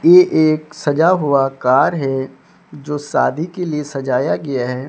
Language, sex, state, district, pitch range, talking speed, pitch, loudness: Hindi, male, Odisha, Sambalpur, 135-155 Hz, 160 wpm, 145 Hz, -16 LUFS